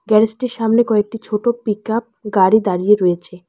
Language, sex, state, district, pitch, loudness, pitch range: Bengali, female, West Bengal, Alipurduar, 215 Hz, -17 LUFS, 205-225 Hz